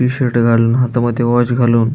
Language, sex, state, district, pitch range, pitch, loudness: Marathi, male, Maharashtra, Aurangabad, 120-125 Hz, 120 Hz, -14 LUFS